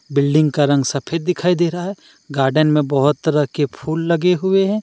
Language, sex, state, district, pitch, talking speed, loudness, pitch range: Hindi, male, Jharkhand, Deoghar, 155 Hz, 210 wpm, -17 LUFS, 145-175 Hz